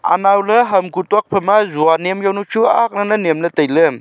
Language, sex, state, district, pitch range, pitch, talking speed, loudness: Wancho, male, Arunachal Pradesh, Longding, 170-210 Hz, 195 Hz, 240 wpm, -14 LUFS